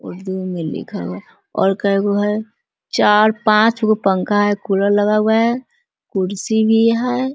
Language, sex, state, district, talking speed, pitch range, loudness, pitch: Hindi, female, Bihar, Muzaffarpur, 165 wpm, 195-225 Hz, -17 LUFS, 210 Hz